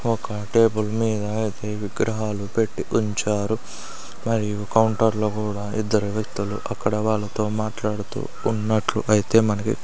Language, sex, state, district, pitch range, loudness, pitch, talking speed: Telugu, male, Andhra Pradesh, Sri Satya Sai, 105-110 Hz, -23 LUFS, 110 Hz, 110 wpm